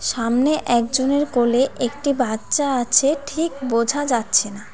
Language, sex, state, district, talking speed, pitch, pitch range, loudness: Bengali, female, West Bengal, Cooch Behar, 125 wpm, 255 Hz, 235-285 Hz, -19 LUFS